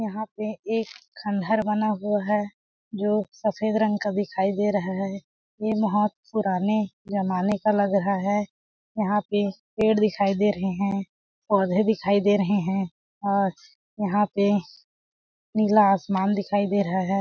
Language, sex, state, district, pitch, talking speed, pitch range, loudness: Hindi, female, Chhattisgarh, Balrampur, 205 Hz, 155 wpm, 195-210 Hz, -24 LUFS